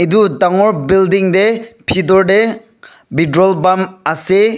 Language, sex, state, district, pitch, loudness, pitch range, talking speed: Nagamese, male, Nagaland, Dimapur, 190 Hz, -12 LUFS, 185-215 Hz, 120 wpm